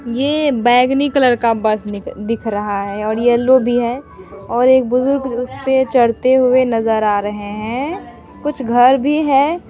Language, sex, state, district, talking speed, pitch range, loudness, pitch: Hindi, female, Bihar, Begusarai, 175 wpm, 225-265 Hz, -15 LUFS, 245 Hz